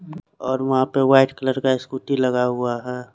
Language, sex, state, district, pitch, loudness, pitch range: Hindi, male, Chandigarh, Chandigarh, 130 Hz, -20 LUFS, 125-135 Hz